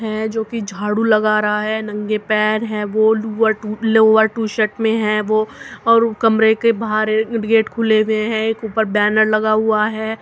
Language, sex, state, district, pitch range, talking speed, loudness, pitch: Hindi, male, Uttar Pradesh, Muzaffarnagar, 215-220 Hz, 205 wpm, -17 LUFS, 220 Hz